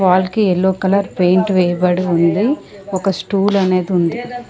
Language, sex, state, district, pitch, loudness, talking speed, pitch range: Telugu, female, Andhra Pradesh, Sri Satya Sai, 190 Hz, -16 LUFS, 145 wpm, 180-200 Hz